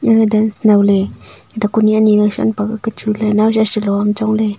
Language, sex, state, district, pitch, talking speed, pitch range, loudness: Wancho, female, Arunachal Pradesh, Longding, 215 Hz, 195 wpm, 210-220 Hz, -14 LUFS